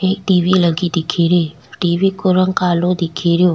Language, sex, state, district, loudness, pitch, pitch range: Rajasthani, female, Rajasthan, Nagaur, -16 LUFS, 180 Hz, 170-185 Hz